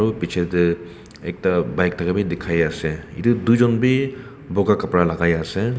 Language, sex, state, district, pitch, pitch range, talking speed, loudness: Nagamese, male, Nagaland, Kohima, 90 Hz, 85-115 Hz, 145 wpm, -20 LUFS